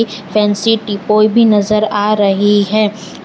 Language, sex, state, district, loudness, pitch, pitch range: Hindi, female, Gujarat, Valsad, -12 LUFS, 210 Hz, 205-215 Hz